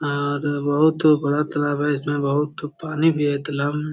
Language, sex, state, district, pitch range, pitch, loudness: Hindi, male, Bihar, Jamui, 145-150 Hz, 145 Hz, -21 LUFS